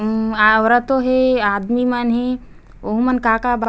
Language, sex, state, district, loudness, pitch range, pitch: Chhattisgarhi, female, Chhattisgarh, Bastar, -16 LUFS, 220-250 Hz, 240 Hz